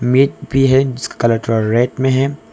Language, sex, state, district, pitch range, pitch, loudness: Hindi, male, Arunachal Pradesh, Longding, 115-135 Hz, 130 Hz, -15 LUFS